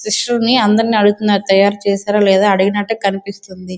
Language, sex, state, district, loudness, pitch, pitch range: Telugu, female, Andhra Pradesh, Srikakulam, -13 LUFS, 205 Hz, 195-215 Hz